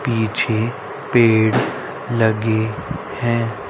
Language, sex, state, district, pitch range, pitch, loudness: Hindi, male, Haryana, Rohtak, 110-120 Hz, 115 Hz, -19 LUFS